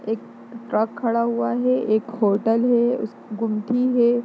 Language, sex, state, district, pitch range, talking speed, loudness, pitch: Hindi, female, Bihar, Darbhanga, 215-240 Hz, 155 wpm, -22 LUFS, 230 Hz